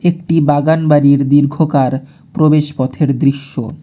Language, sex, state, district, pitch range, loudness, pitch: Bengali, male, West Bengal, Alipurduar, 140-155 Hz, -13 LUFS, 145 Hz